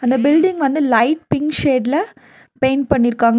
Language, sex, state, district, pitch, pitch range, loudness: Tamil, female, Tamil Nadu, Nilgiris, 275 Hz, 250-300 Hz, -16 LUFS